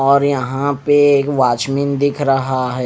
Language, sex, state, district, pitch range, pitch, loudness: Hindi, male, Punjab, Fazilka, 130-145 Hz, 140 Hz, -15 LUFS